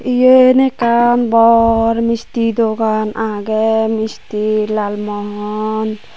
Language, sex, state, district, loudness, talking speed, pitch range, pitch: Chakma, female, Tripura, Unakoti, -14 LUFS, 80 wpm, 215-230 Hz, 220 Hz